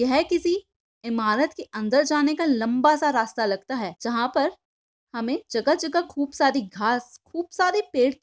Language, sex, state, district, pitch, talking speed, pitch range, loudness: Hindi, female, Maharashtra, Aurangabad, 285 Hz, 145 wpm, 235-325 Hz, -24 LUFS